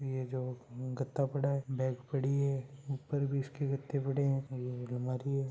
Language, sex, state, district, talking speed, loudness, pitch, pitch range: Marwari, male, Rajasthan, Churu, 185 wpm, -36 LUFS, 135 Hz, 130-140 Hz